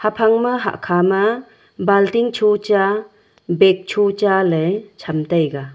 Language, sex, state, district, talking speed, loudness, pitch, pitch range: Wancho, female, Arunachal Pradesh, Longding, 135 wpm, -17 LUFS, 200 Hz, 180-215 Hz